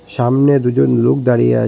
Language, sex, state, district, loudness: Bengali, male, Assam, Hailakandi, -13 LUFS